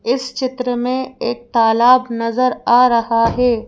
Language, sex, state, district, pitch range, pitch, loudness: Hindi, female, Madhya Pradesh, Bhopal, 230-255 Hz, 245 Hz, -16 LUFS